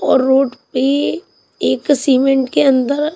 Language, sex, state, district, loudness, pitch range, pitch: Hindi, female, Punjab, Kapurthala, -15 LUFS, 260-280 Hz, 270 Hz